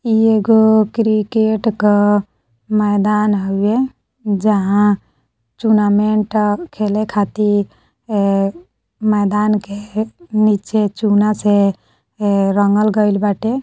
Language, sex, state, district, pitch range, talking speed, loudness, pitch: Bhojpuri, female, Uttar Pradesh, Deoria, 200-215 Hz, 90 wpm, -15 LUFS, 210 Hz